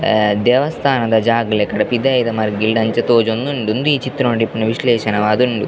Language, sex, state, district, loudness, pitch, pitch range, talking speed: Tulu, male, Karnataka, Dakshina Kannada, -16 LUFS, 115 Hz, 110-125 Hz, 150 wpm